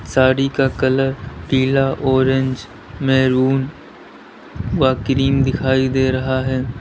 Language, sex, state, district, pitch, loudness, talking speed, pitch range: Hindi, male, Uttar Pradesh, Lalitpur, 130 Hz, -17 LUFS, 105 wpm, 130-135 Hz